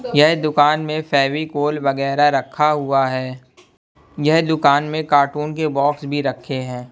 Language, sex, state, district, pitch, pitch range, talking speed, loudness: Hindi, male, Bihar, West Champaran, 145 Hz, 140-155 Hz, 145 wpm, -18 LUFS